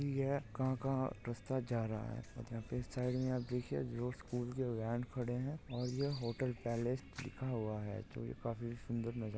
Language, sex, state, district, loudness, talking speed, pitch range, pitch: Hindi, male, Maharashtra, Dhule, -41 LUFS, 205 wpm, 115-130 Hz, 125 Hz